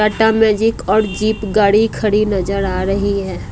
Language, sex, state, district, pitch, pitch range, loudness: Hindi, female, Odisha, Malkangiri, 210 Hz, 195-215 Hz, -15 LUFS